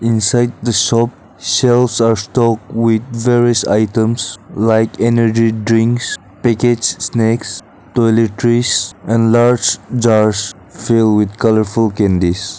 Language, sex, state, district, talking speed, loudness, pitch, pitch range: English, male, Nagaland, Dimapur, 105 wpm, -14 LUFS, 115 Hz, 105-120 Hz